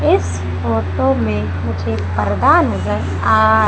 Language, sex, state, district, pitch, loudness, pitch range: Hindi, female, Madhya Pradesh, Umaria, 90 Hz, -16 LUFS, 90-105 Hz